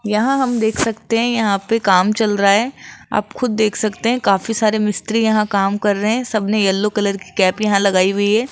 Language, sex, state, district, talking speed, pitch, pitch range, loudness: Hindi, female, Rajasthan, Jaipur, 240 wpm, 215 Hz, 200-225 Hz, -17 LUFS